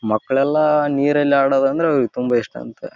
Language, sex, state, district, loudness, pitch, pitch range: Kannada, male, Karnataka, Raichur, -17 LUFS, 135 Hz, 125-145 Hz